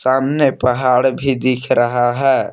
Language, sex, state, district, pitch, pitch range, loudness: Hindi, male, Jharkhand, Palamu, 130 Hz, 125-135 Hz, -15 LUFS